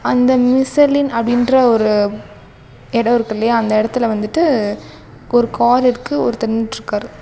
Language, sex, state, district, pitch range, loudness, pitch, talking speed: Tamil, female, Tamil Nadu, Namakkal, 220-255 Hz, -15 LUFS, 235 Hz, 115 wpm